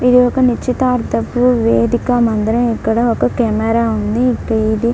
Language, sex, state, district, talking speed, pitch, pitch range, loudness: Telugu, female, Andhra Pradesh, Krishna, 135 wpm, 235 Hz, 220-250 Hz, -15 LUFS